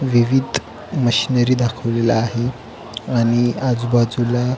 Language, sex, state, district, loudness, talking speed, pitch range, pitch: Marathi, male, Maharashtra, Pune, -18 LUFS, 80 wpm, 120-125 Hz, 120 Hz